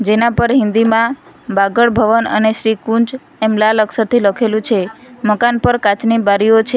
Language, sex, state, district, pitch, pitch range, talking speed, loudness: Gujarati, female, Gujarat, Valsad, 225 Hz, 215-235 Hz, 150 wpm, -14 LUFS